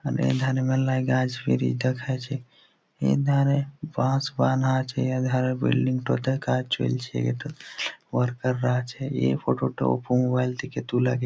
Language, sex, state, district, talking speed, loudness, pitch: Bengali, male, West Bengal, Jalpaiguri, 145 wpm, -25 LUFS, 125 Hz